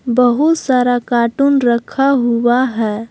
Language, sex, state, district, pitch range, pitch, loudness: Hindi, female, Jharkhand, Palamu, 235-270 Hz, 245 Hz, -14 LUFS